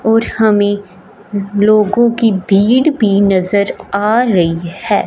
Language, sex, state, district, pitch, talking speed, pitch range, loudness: Hindi, female, Punjab, Fazilka, 205 Hz, 120 wpm, 200-220 Hz, -13 LUFS